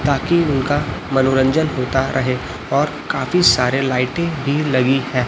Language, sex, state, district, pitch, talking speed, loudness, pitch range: Hindi, male, Chhattisgarh, Raipur, 135 Hz, 135 wpm, -17 LUFS, 130-145 Hz